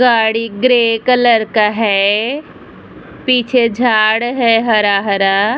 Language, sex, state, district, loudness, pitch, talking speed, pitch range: Hindi, female, Bihar, Vaishali, -13 LUFS, 225 Hz, 110 wpm, 215-245 Hz